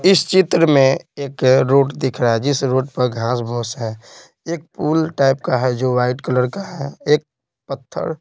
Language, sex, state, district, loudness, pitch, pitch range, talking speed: Hindi, male, Bihar, Patna, -18 LUFS, 135 Hz, 125-155 Hz, 190 wpm